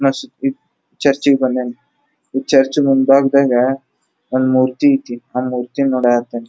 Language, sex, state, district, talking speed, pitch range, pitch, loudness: Kannada, male, Karnataka, Dharwad, 120 wpm, 125-140 Hz, 135 Hz, -15 LUFS